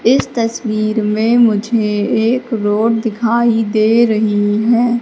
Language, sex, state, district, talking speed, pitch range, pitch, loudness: Hindi, female, Madhya Pradesh, Katni, 120 wpm, 215-235 Hz, 225 Hz, -14 LUFS